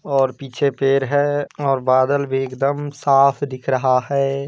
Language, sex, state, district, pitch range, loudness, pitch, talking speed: Hindi, male, Bihar, East Champaran, 135-140 Hz, -19 LUFS, 135 Hz, 160 wpm